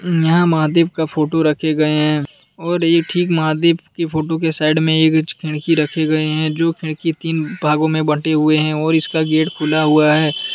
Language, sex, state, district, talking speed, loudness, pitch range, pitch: Hindi, male, Jharkhand, Deoghar, 200 wpm, -16 LUFS, 155-165 Hz, 160 Hz